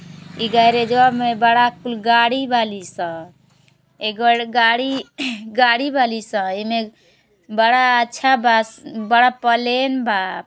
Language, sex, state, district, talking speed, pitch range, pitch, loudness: Bhojpuri, female, Uttar Pradesh, Gorakhpur, 125 wpm, 215-245 Hz, 235 Hz, -17 LUFS